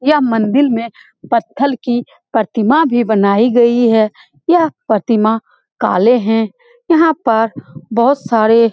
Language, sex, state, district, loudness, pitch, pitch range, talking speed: Hindi, female, Bihar, Saran, -14 LUFS, 230 Hz, 220-260 Hz, 125 wpm